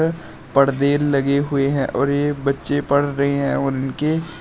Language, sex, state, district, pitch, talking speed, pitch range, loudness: Hindi, male, Uttar Pradesh, Shamli, 140 Hz, 150 wpm, 140-145 Hz, -19 LUFS